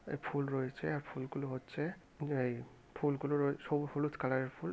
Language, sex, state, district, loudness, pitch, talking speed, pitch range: Bengali, male, West Bengal, Malda, -38 LUFS, 140 Hz, 165 wpm, 130-150 Hz